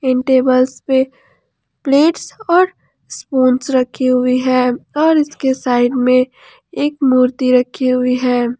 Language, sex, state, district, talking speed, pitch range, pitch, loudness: Hindi, female, Jharkhand, Ranchi, 120 wpm, 250-270 Hz, 255 Hz, -15 LUFS